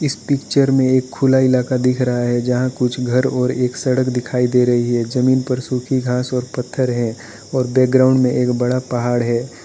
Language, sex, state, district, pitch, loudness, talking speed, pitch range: Hindi, male, Arunachal Pradesh, Lower Dibang Valley, 125 Hz, -17 LUFS, 205 wpm, 125-130 Hz